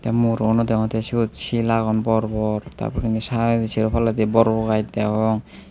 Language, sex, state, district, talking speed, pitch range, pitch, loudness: Chakma, male, Tripura, Unakoti, 180 wpm, 110-115 Hz, 110 Hz, -21 LUFS